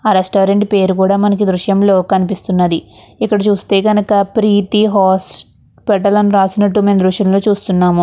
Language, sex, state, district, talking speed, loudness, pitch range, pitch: Telugu, female, Andhra Pradesh, Chittoor, 140 wpm, -13 LUFS, 185-205 Hz, 195 Hz